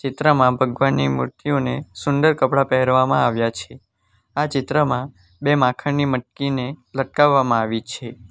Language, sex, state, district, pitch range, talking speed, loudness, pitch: Gujarati, male, Gujarat, Valsad, 120-140 Hz, 125 wpm, -19 LUFS, 130 Hz